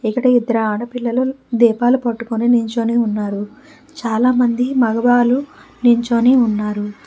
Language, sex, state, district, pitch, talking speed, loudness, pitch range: Telugu, female, Telangana, Hyderabad, 240 Hz, 100 wpm, -16 LUFS, 225-250 Hz